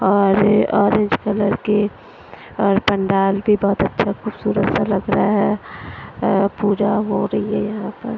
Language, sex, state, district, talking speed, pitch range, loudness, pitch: Hindi, female, Delhi, New Delhi, 155 wpm, 200-210 Hz, -18 LUFS, 205 Hz